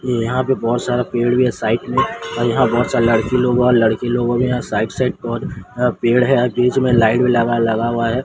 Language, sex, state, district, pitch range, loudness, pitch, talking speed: Hindi, male, Odisha, Sambalpur, 115-125 Hz, -17 LUFS, 120 Hz, 260 wpm